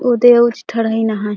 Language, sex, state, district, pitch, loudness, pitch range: Chhattisgarhi, female, Chhattisgarh, Jashpur, 225 Hz, -13 LUFS, 220-240 Hz